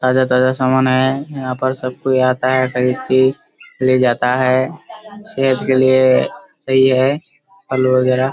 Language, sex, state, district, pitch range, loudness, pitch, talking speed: Hindi, male, Bihar, Kishanganj, 130-135 Hz, -15 LUFS, 130 Hz, 160 wpm